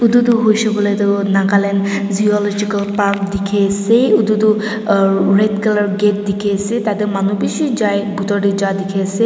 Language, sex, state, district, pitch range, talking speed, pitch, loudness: Nagamese, female, Nagaland, Dimapur, 200-215 Hz, 170 wpm, 205 Hz, -15 LUFS